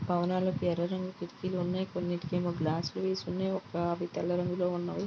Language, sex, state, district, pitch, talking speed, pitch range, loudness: Telugu, female, Andhra Pradesh, Guntur, 180 Hz, 175 wpm, 175-185 Hz, -33 LUFS